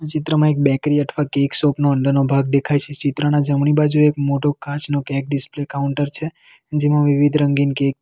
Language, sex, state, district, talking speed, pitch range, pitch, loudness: Gujarati, male, Gujarat, Valsad, 195 wpm, 140-150 Hz, 145 Hz, -18 LUFS